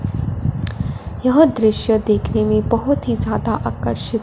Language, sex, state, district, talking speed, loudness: Hindi, female, Punjab, Fazilka, 115 wpm, -18 LUFS